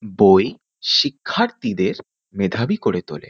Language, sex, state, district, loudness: Bengali, male, West Bengal, Kolkata, -19 LUFS